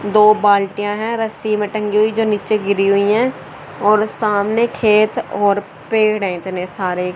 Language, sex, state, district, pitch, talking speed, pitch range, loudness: Hindi, female, Haryana, Rohtak, 210 Hz, 170 wpm, 200-215 Hz, -16 LUFS